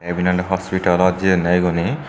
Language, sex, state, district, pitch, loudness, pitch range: Chakma, male, Tripura, Dhalai, 90 Hz, -18 LUFS, 90-95 Hz